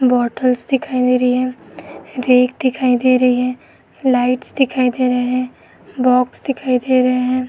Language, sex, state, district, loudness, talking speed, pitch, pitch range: Hindi, female, Uttar Pradesh, Varanasi, -16 LUFS, 150 wpm, 255 Hz, 250-255 Hz